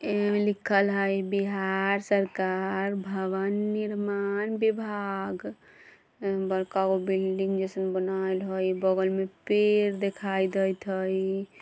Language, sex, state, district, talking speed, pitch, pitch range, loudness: Bajjika, female, Bihar, Vaishali, 110 wpm, 195 Hz, 190-200 Hz, -28 LUFS